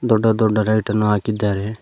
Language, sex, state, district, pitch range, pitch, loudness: Kannada, male, Karnataka, Koppal, 105-110 Hz, 110 Hz, -18 LUFS